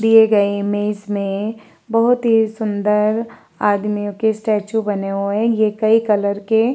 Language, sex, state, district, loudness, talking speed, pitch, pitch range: Hindi, female, Uttar Pradesh, Varanasi, -18 LUFS, 160 wpm, 210 Hz, 205-225 Hz